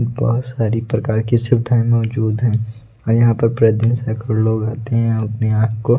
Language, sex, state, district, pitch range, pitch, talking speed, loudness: Hindi, male, Odisha, Nuapada, 110-115 Hz, 115 Hz, 190 wpm, -17 LUFS